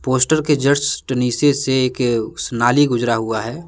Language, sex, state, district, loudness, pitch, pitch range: Hindi, male, Jharkhand, Deoghar, -17 LUFS, 130 Hz, 120-145 Hz